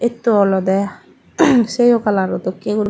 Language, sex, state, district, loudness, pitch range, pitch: Chakma, female, Tripura, Dhalai, -16 LUFS, 200-240 Hz, 210 Hz